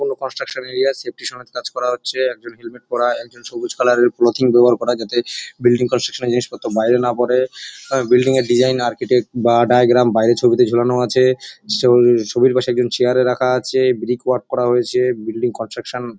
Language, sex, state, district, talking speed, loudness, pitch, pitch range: Bengali, male, West Bengal, North 24 Parganas, 210 wpm, -17 LUFS, 125 Hz, 120-130 Hz